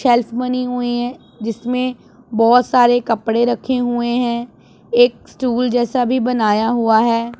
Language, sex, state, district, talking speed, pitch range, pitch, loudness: Hindi, female, Punjab, Pathankot, 145 wpm, 235-250 Hz, 240 Hz, -17 LUFS